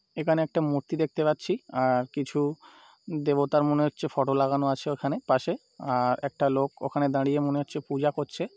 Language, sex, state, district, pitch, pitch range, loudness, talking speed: Bengali, male, West Bengal, North 24 Parganas, 145 Hz, 140-155 Hz, -27 LUFS, 155 wpm